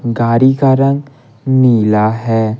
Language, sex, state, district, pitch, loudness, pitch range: Hindi, male, Bihar, Patna, 120 Hz, -12 LUFS, 115-135 Hz